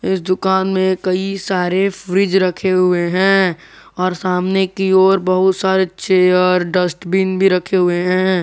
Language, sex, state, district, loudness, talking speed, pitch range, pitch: Hindi, male, Jharkhand, Garhwa, -15 LUFS, 150 wpm, 180-190 Hz, 185 Hz